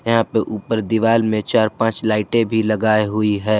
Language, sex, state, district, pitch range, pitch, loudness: Hindi, male, Jharkhand, Garhwa, 110-115 Hz, 110 Hz, -18 LUFS